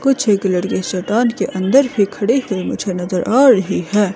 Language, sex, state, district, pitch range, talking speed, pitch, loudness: Hindi, female, Himachal Pradesh, Shimla, 190-240 Hz, 200 wpm, 205 Hz, -16 LUFS